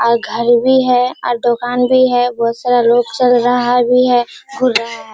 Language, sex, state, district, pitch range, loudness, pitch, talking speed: Hindi, female, Bihar, Kishanganj, 235-250 Hz, -13 LUFS, 245 Hz, 210 wpm